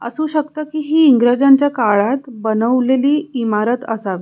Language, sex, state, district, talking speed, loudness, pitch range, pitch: Marathi, female, Maharashtra, Pune, 130 wpm, -15 LUFS, 225-295 Hz, 255 Hz